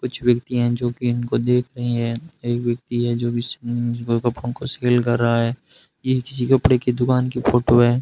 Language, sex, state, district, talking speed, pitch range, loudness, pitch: Hindi, male, Rajasthan, Bikaner, 215 wpm, 120-125 Hz, -21 LUFS, 120 Hz